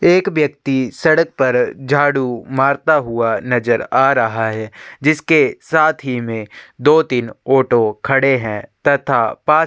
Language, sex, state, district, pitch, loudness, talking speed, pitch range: Hindi, male, Chhattisgarh, Sukma, 135 Hz, -16 LUFS, 150 wpm, 120-155 Hz